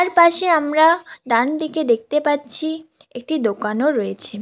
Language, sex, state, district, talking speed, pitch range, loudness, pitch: Bengali, female, West Bengal, Cooch Behar, 120 wpm, 240-320 Hz, -18 LUFS, 300 Hz